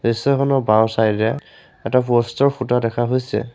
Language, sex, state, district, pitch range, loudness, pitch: Assamese, male, Assam, Sonitpur, 115-135 Hz, -18 LUFS, 125 Hz